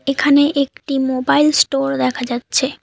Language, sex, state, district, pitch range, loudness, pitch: Bengali, female, West Bengal, Alipurduar, 260-285 Hz, -16 LUFS, 275 Hz